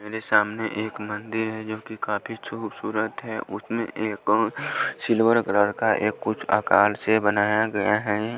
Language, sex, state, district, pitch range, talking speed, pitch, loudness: Hindi, male, Punjab, Pathankot, 105-110 Hz, 165 wpm, 110 Hz, -24 LUFS